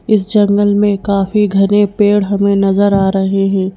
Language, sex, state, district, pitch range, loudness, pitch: Hindi, female, Madhya Pradesh, Bhopal, 195-205 Hz, -12 LUFS, 200 Hz